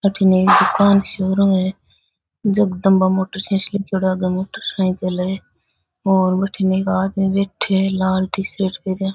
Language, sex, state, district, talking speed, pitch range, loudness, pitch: Rajasthani, female, Rajasthan, Nagaur, 140 wpm, 190-195 Hz, -18 LUFS, 190 Hz